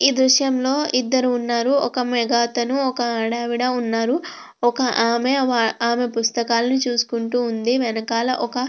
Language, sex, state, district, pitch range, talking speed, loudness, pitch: Telugu, female, Andhra Pradesh, Krishna, 235-260 Hz, 125 wpm, -20 LUFS, 245 Hz